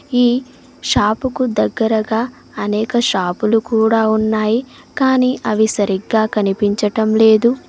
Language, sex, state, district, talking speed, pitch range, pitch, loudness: Telugu, female, Telangana, Mahabubabad, 95 wpm, 215-245 Hz, 220 Hz, -16 LUFS